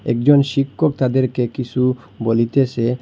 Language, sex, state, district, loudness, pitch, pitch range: Bengali, male, Assam, Hailakandi, -18 LUFS, 130 Hz, 120-135 Hz